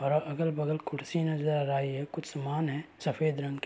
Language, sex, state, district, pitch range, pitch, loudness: Hindi, male, Uttar Pradesh, Varanasi, 145-155 Hz, 150 Hz, -32 LUFS